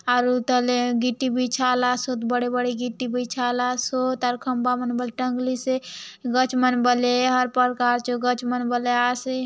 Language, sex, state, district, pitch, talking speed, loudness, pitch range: Halbi, female, Chhattisgarh, Bastar, 250 Hz, 145 wpm, -23 LUFS, 245-255 Hz